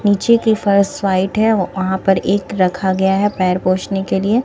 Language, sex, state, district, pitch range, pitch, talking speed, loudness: Hindi, female, Bihar, Katihar, 190-205 Hz, 195 Hz, 200 wpm, -16 LUFS